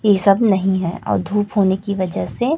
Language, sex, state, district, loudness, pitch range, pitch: Hindi, female, Chhattisgarh, Raipur, -18 LUFS, 190-210 Hz, 200 Hz